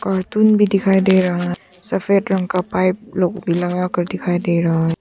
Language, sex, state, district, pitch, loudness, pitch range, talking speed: Hindi, female, Arunachal Pradesh, Papum Pare, 185 Hz, -18 LUFS, 175-195 Hz, 190 wpm